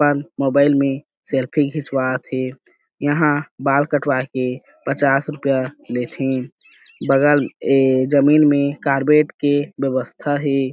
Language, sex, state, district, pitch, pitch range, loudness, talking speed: Chhattisgarhi, male, Chhattisgarh, Jashpur, 140 Hz, 130-145 Hz, -18 LUFS, 115 wpm